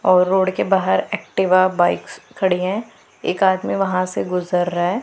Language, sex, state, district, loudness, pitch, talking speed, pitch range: Hindi, female, Punjab, Pathankot, -19 LUFS, 185 Hz, 180 wpm, 180-190 Hz